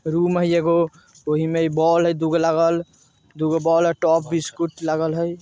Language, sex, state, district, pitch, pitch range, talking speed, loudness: Bajjika, male, Bihar, Vaishali, 165 Hz, 160-170 Hz, 190 wpm, -20 LUFS